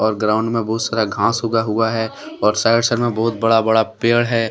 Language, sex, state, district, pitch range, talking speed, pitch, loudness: Hindi, male, Jharkhand, Deoghar, 110-115 Hz, 225 wpm, 115 Hz, -17 LUFS